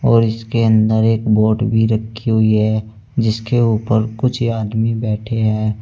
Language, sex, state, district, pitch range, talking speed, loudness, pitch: Hindi, male, Uttar Pradesh, Saharanpur, 110-115 Hz, 155 wpm, -16 LUFS, 110 Hz